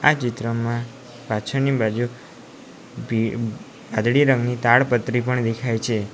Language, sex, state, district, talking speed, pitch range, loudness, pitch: Gujarati, male, Gujarat, Valsad, 105 wpm, 115-125 Hz, -21 LUFS, 120 Hz